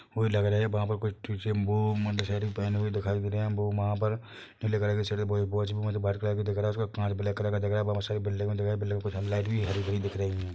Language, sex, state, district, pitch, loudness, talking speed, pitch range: Hindi, male, Chhattisgarh, Bilaspur, 105 Hz, -30 LUFS, 245 wpm, 100-105 Hz